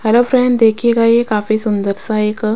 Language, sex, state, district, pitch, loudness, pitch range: Hindi, female, Punjab, Kapurthala, 220 Hz, -14 LUFS, 215-235 Hz